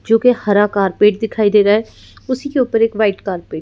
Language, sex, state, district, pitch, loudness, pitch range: Hindi, female, Madhya Pradesh, Bhopal, 215 Hz, -15 LUFS, 205-225 Hz